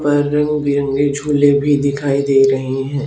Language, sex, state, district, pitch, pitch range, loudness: Hindi, female, Haryana, Charkhi Dadri, 140 Hz, 140-145 Hz, -15 LUFS